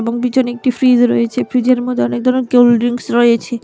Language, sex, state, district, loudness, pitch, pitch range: Bengali, female, Tripura, West Tripura, -14 LUFS, 245 Hz, 235-250 Hz